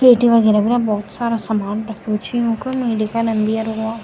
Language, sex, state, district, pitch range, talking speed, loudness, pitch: Garhwali, female, Uttarakhand, Tehri Garhwal, 215-235 Hz, 195 wpm, -18 LUFS, 225 Hz